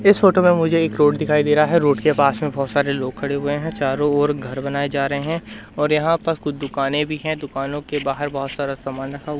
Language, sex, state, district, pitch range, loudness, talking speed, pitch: Hindi, male, Madhya Pradesh, Katni, 140-155 Hz, -20 LUFS, 270 wpm, 145 Hz